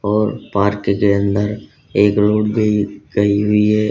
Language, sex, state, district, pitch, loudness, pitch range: Hindi, male, Uttar Pradesh, Lalitpur, 105 Hz, -16 LUFS, 100-105 Hz